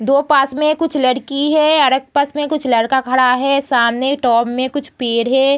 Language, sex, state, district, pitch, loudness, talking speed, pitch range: Hindi, female, Bihar, Gaya, 270 Hz, -15 LUFS, 205 wpm, 255-285 Hz